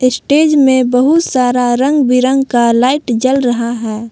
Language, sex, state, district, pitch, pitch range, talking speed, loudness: Hindi, female, Jharkhand, Palamu, 255 Hz, 240-270 Hz, 160 wpm, -12 LUFS